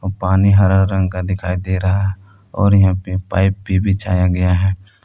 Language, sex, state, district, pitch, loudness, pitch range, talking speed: Hindi, male, Jharkhand, Palamu, 95 Hz, -16 LUFS, 95-100 Hz, 190 wpm